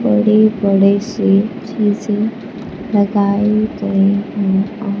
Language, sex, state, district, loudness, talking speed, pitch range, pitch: Hindi, female, Bihar, Kaimur, -15 LUFS, 95 wpm, 200-215 Hz, 205 Hz